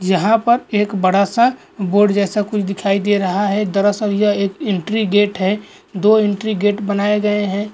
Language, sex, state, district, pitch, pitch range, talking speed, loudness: Hindi, male, Goa, North and South Goa, 205 Hz, 200-210 Hz, 195 wpm, -16 LUFS